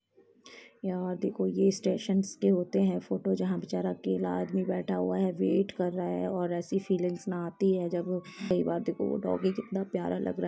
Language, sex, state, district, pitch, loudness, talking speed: Hindi, female, Uttar Pradesh, Etah, 175 Hz, -31 LUFS, 205 wpm